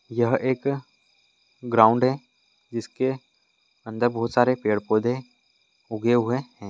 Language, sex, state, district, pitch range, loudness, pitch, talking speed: Hindi, male, Jharkhand, Jamtara, 115-130 Hz, -24 LUFS, 120 Hz, 115 wpm